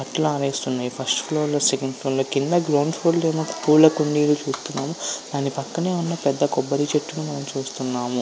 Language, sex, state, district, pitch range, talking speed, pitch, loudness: Telugu, male, Andhra Pradesh, Visakhapatnam, 135-155 Hz, 170 wpm, 145 Hz, -22 LUFS